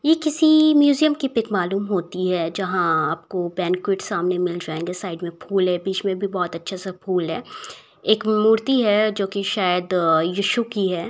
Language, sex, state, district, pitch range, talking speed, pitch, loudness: Hindi, female, Uttar Pradesh, Ghazipur, 180-215 Hz, 180 wpm, 190 Hz, -21 LUFS